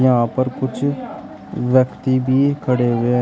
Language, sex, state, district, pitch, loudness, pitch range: Hindi, male, Uttar Pradesh, Shamli, 130 Hz, -18 LUFS, 125-130 Hz